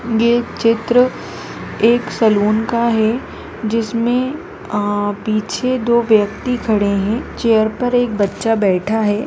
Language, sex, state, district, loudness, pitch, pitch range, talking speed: Hindi, female, Rajasthan, Nagaur, -16 LUFS, 225 Hz, 210-240 Hz, 125 wpm